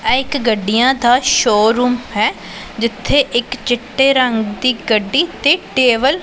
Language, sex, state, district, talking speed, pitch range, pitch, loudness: Punjabi, female, Punjab, Pathankot, 145 wpm, 230-265 Hz, 245 Hz, -14 LUFS